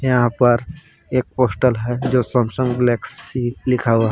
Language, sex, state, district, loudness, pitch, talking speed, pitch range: Hindi, male, Jharkhand, Palamu, -17 LUFS, 125 Hz, 145 wpm, 120-130 Hz